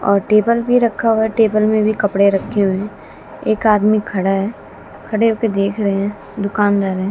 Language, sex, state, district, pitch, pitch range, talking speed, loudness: Hindi, female, Bihar, West Champaran, 210 Hz, 200-220 Hz, 195 wpm, -16 LUFS